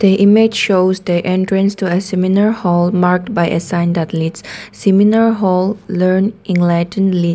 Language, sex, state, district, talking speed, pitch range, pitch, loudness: English, female, Nagaland, Dimapur, 155 wpm, 175-200 Hz, 185 Hz, -14 LUFS